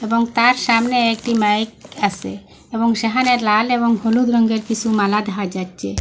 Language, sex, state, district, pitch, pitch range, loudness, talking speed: Bengali, female, Assam, Hailakandi, 225 Hz, 210-235 Hz, -17 LUFS, 160 wpm